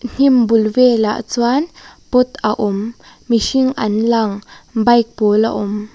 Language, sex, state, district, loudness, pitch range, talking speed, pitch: Mizo, female, Mizoram, Aizawl, -15 LUFS, 215-250 Hz, 140 wpm, 230 Hz